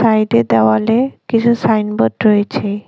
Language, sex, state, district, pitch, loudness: Bengali, female, West Bengal, Cooch Behar, 210 Hz, -14 LUFS